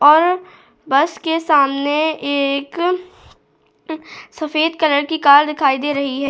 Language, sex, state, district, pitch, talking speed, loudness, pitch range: Hindi, female, Goa, North and South Goa, 305 Hz, 125 wpm, -16 LUFS, 285-325 Hz